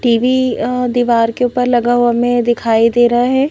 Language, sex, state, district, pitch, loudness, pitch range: Hindi, female, Madhya Pradesh, Bhopal, 240 Hz, -13 LUFS, 235-250 Hz